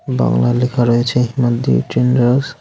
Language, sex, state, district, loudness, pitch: Bengali, male, West Bengal, Alipurduar, -15 LUFS, 120 Hz